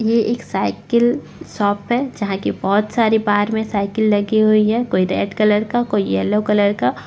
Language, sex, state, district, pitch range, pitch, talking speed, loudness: Hindi, female, Bihar, Sitamarhi, 205-225 Hz, 215 Hz, 195 wpm, -18 LUFS